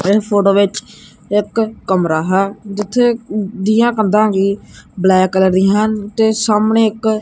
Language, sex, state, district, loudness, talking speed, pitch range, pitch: Punjabi, male, Punjab, Kapurthala, -14 LUFS, 140 wpm, 195-220 Hz, 210 Hz